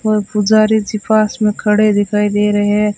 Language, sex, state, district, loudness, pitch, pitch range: Hindi, female, Rajasthan, Bikaner, -14 LUFS, 210 Hz, 210-215 Hz